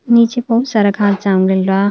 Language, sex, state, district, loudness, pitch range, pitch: Hindi, female, Uttar Pradesh, Varanasi, -14 LUFS, 195-230 Hz, 205 Hz